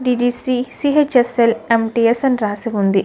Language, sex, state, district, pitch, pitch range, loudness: Telugu, female, Andhra Pradesh, Krishna, 240 Hz, 230-250 Hz, -16 LUFS